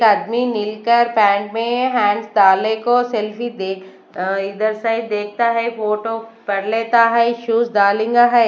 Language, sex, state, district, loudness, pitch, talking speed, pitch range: Hindi, female, Bihar, West Champaran, -17 LUFS, 225 Hz, 135 wpm, 205-235 Hz